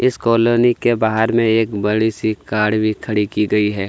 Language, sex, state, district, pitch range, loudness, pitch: Hindi, male, Chhattisgarh, Kabirdham, 105-115 Hz, -17 LUFS, 110 Hz